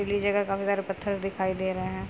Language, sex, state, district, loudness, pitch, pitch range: Hindi, female, Uttar Pradesh, Jalaun, -29 LUFS, 195 Hz, 190-200 Hz